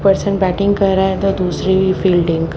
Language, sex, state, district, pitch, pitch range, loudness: Hindi, female, Haryana, Jhajjar, 190 Hz, 180-195 Hz, -15 LUFS